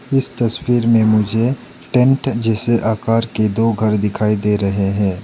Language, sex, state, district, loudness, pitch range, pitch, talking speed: Hindi, male, Arunachal Pradesh, Lower Dibang Valley, -16 LUFS, 105-120 Hz, 110 Hz, 160 wpm